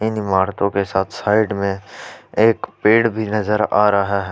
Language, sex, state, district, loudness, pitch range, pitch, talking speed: Hindi, male, Jharkhand, Ranchi, -18 LUFS, 100-110 Hz, 105 Hz, 180 wpm